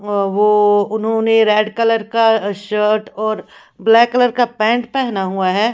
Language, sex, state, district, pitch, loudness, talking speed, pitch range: Hindi, female, Odisha, Khordha, 215 Hz, -15 LUFS, 155 wpm, 205-230 Hz